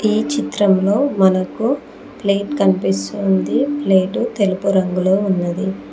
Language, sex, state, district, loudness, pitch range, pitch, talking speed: Telugu, female, Telangana, Mahabubabad, -17 LUFS, 185-215 Hz, 195 Hz, 90 wpm